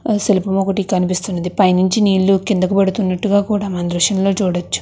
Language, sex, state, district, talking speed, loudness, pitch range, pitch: Telugu, female, Andhra Pradesh, Krishna, 150 wpm, -16 LUFS, 185-200 Hz, 195 Hz